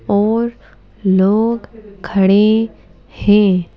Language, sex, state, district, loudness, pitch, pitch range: Hindi, female, Madhya Pradesh, Bhopal, -15 LUFS, 205 Hz, 195-220 Hz